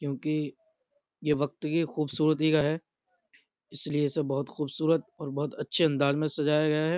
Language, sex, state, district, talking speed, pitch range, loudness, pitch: Hindi, male, Uttar Pradesh, Budaun, 165 wpm, 145-160 Hz, -28 LUFS, 155 Hz